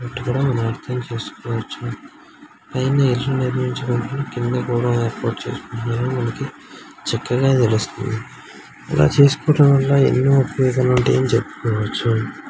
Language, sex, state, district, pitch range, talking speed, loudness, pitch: Telugu, male, Andhra Pradesh, Srikakulam, 115-130 Hz, 75 wpm, -19 LUFS, 125 Hz